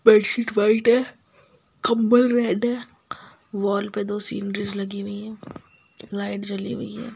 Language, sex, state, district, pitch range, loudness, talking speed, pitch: Hindi, female, Bihar, Saharsa, 200-235 Hz, -23 LUFS, 175 wpm, 215 Hz